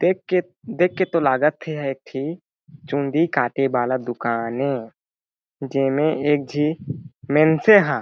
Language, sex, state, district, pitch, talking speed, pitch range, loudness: Chhattisgarhi, male, Chhattisgarh, Jashpur, 145 Hz, 140 wpm, 135-165 Hz, -21 LUFS